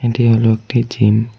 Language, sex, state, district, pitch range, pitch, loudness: Bengali, male, West Bengal, Cooch Behar, 110-120 Hz, 115 Hz, -14 LUFS